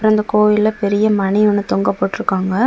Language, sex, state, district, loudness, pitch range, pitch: Tamil, female, Tamil Nadu, Kanyakumari, -15 LUFS, 190-215 Hz, 210 Hz